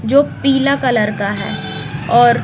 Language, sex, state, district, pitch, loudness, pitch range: Hindi, female, Maharashtra, Washim, 235 Hz, -15 LUFS, 195-270 Hz